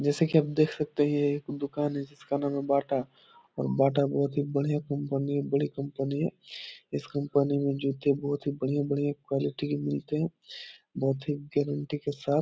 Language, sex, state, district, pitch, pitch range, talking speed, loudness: Hindi, male, Bihar, Jahanabad, 140 Hz, 140-145 Hz, 190 wpm, -29 LUFS